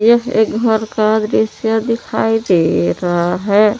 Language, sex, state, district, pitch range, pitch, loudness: Hindi, female, Jharkhand, Palamu, 190-225 Hz, 220 Hz, -15 LUFS